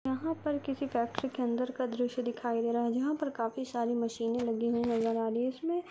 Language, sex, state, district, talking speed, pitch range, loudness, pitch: Hindi, female, Rajasthan, Churu, 235 wpm, 235-270 Hz, -33 LUFS, 245 Hz